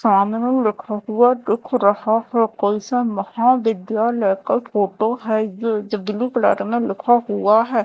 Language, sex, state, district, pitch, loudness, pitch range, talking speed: Hindi, female, Madhya Pradesh, Dhar, 220 Hz, -19 LUFS, 210-240 Hz, 145 wpm